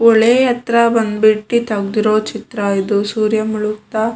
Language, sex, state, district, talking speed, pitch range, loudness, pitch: Kannada, female, Karnataka, Shimoga, 130 wpm, 215-230 Hz, -15 LUFS, 215 Hz